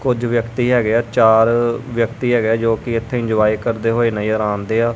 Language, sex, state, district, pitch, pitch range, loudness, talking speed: Punjabi, male, Punjab, Kapurthala, 115 Hz, 110-120 Hz, -17 LUFS, 180 wpm